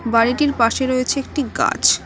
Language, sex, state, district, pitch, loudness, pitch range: Bengali, female, West Bengal, Cooch Behar, 260 Hz, -18 LUFS, 235-285 Hz